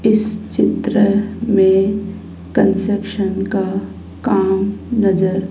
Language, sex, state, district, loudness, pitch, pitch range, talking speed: Hindi, female, Madhya Pradesh, Dhar, -17 LUFS, 200 Hz, 190-210 Hz, 75 wpm